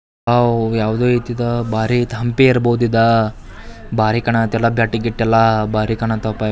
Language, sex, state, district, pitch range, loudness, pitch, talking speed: Kannada, male, Karnataka, Belgaum, 110-120 Hz, -16 LUFS, 115 Hz, 110 wpm